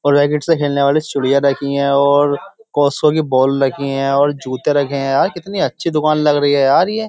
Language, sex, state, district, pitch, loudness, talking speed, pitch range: Hindi, male, Uttar Pradesh, Jyotiba Phule Nagar, 145 Hz, -15 LUFS, 220 wpm, 140-150 Hz